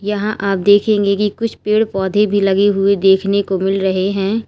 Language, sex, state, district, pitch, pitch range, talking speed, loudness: Hindi, female, Uttar Pradesh, Lalitpur, 200 Hz, 195-210 Hz, 200 wpm, -15 LUFS